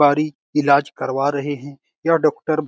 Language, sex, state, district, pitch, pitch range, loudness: Hindi, male, Bihar, Saran, 145 Hz, 140-155 Hz, -20 LUFS